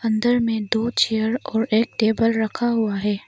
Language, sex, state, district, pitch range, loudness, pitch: Hindi, female, Arunachal Pradesh, Longding, 220-230 Hz, -21 LUFS, 225 Hz